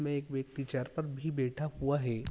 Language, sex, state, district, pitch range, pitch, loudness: Hindi, male, Andhra Pradesh, Visakhapatnam, 130-145 Hz, 140 Hz, -35 LUFS